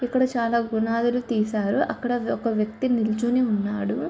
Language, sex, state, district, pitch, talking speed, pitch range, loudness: Telugu, female, Andhra Pradesh, Chittoor, 235 Hz, 130 wpm, 215-245 Hz, -24 LUFS